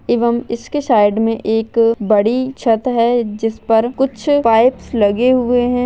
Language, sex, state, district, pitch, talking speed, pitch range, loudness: Hindi, female, Maharashtra, Aurangabad, 235 Hz, 165 wpm, 225-245 Hz, -15 LUFS